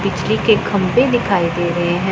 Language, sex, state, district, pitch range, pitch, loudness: Hindi, female, Punjab, Pathankot, 175-200 Hz, 185 Hz, -16 LUFS